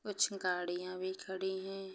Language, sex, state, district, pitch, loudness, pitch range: Hindi, female, Chhattisgarh, Bastar, 190 Hz, -38 LUFS, 185-195 Hz